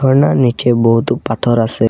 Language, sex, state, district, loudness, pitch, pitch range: Bengali, male, Assam, Kamrup Metropolitan, -13 LUFS, 120 Hz, 115-130 Hz